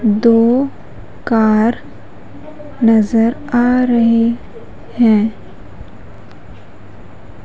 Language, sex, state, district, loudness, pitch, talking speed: Hindi, female, Madhya Pradesh, Umaria, -13 LUFS, 220 Hz, 55 wpm